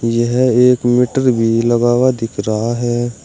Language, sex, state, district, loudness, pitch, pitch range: Hindi, male, Uttar Pradesh, Saharanpur, -14 LUFS, 120 Hz, 115-125 Hz